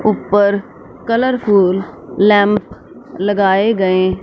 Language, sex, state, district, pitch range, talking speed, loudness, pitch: Hindi, female, Punjab, Fazilka, 195-210 Hz, 70 wpm, -14 LUFS, 205 Hz